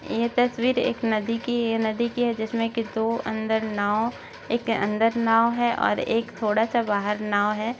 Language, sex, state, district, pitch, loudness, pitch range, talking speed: Hindi, female, Bihar, Saharsa, 225 Hz, -24 LUFS, 220-235 Hz, 190 wpm